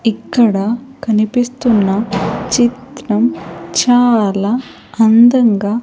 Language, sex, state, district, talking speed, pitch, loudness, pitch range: Telugu, female, Andhra Pradesh, Sri Satya Sai, 50 wpm, 230 Hz, -13 LUFS, 210-245 Hz